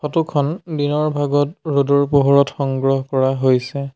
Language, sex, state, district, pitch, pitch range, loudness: Assamese, male, Assam, Sonitpur, 140 Hz, 135-150 Hz, -18 LUFS